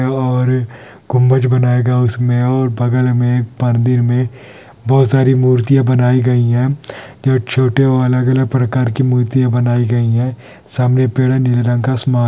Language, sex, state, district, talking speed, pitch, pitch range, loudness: Hindi, male, Andhra Pradesh, Anantapur, 120 wpm, 125 Hz, 120-130 Hz, -14 LUFS